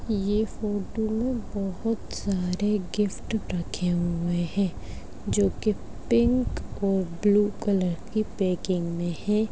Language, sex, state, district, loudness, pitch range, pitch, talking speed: Hindi, male, Bihar, Darbhanga, -27 LUFS, 170-210 Hz, 190 Hz, 120 wpm